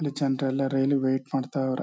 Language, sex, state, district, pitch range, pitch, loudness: Kannada, male, Karnataka, Chamarajanagar, 135-140 Hz, 135 Hz, -26 LUFS